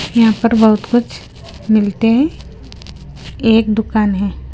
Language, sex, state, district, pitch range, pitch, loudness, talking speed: Hindi, female, Punjab, Kapurthala, 215-230 Hz, 225 Hz, -14 LUFS, 120 wpm